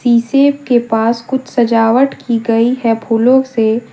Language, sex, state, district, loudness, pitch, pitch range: Hindi, female, Jharkhand, Deoghar, -13 LUFS, 235 Hz, 230-260 Hz